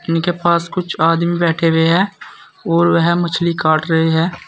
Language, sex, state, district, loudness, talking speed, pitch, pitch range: Hindi, male, Uttar Pradesh, Saharanpur, -15 LUFS, 175 wpm, 170 Hz, 165-175 Hz